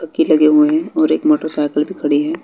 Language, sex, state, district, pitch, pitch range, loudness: Hindi, male, Bihar, West Champaran, 155 Hz, 150-155 Hz, -15 LUFS